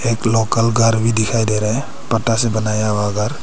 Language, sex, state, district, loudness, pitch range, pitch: Hindi, male, Arunachal Pradesh, Papum Pare, -17 LUFS, 110-115 Hz, 115 Hz